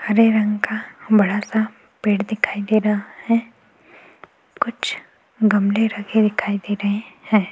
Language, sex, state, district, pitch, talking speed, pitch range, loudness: Hindi, female, Goa, North and South Goa, 210 Hz, 130 wpm, 205-220 Hz, -20 LUFS